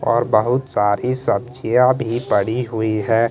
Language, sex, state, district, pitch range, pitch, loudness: Hindi, male, Chandigarh, Chandigarh, 110-125 Hz, 115 Hz, -18 LUFS